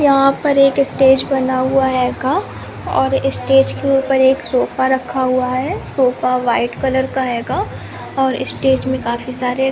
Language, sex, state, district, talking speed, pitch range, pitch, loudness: Hindi, female, Chhattisgarh, Bilaspur, 160 wpm, 255-270 Hz, 265 Hz, -16 LUFS